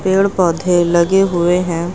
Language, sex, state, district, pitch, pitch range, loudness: Hindi, female, Uttar Pradesh, Lucknow, 180 Hz, 170-190 Hz, -14 LUFS